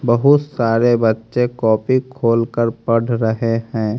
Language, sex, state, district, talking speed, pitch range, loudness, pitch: Hindi, male, Haryana, Rohtak, 135 wpm, 115-125 Hz, -17 LUFS, 115 Hz